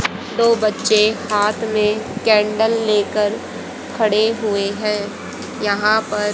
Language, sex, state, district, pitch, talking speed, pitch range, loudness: Hindi, female, Haryana, Jhajjar, 215 Hz, 105 wpm, 210-220 Hz, -18 LUFS